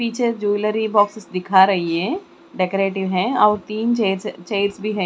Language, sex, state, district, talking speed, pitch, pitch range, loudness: Hindi, female, Chandigarh, Chandigarh, 155 wpm, 205 Hz, 195-220 Hz, -19 LUFS